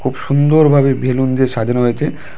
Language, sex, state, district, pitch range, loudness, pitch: Bengali, male, Tripura, West Tripura, 130-145 Hz, -14 LUFS, 130 Hz